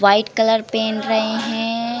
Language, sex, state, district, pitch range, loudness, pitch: Hindi, female, Uttar Pradesh, Jalaun, 220-225 Hz, -19 LUFS, 225 Hz